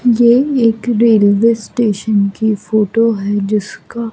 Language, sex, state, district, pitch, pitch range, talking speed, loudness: Hindi, female, Madhya Pradesh, Katni, 225 Hz, 210-235 Hz, 115 wpm, -13 LUFS